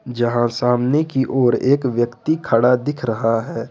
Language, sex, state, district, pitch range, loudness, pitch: Hindi, male, Jharkhand, Ranchi, 120-135 Hz, -18 LUFS, 125 Hz